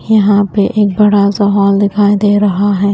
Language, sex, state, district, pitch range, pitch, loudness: Hindi, female, Haryana, Jhajjar, 200-205 Hz, 205 Hz, -11 LUFS